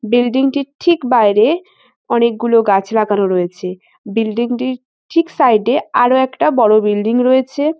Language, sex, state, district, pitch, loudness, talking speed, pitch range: Bengali, female, West Bengal, North 24 Parganas, 245 Hz, -14 LUFS, 140 wpm, 220-275 Hz